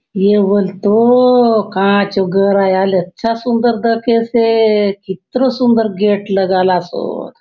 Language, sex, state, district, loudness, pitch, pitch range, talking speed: Halbi, female, Chhattisgarh, Bastar, -13 LUFS, 210 Hz, 195-230 Hz, 130 wpm